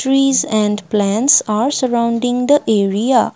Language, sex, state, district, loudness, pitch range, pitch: English, female, Assam, Kamrup Metropolitan, -15 LUFS, 215-265 Hz, 235 Hz